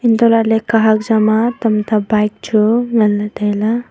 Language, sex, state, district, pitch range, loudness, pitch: Wancho, female, Arunachal Pradesh, Longding, 215-230 Hz, -14 LUFS, 220 Hz